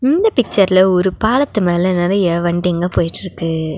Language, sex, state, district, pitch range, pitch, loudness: Tamil, female, Tamil Nadu, Nilgiris, 175-200 Hz, 185 Hz, -15 LUFS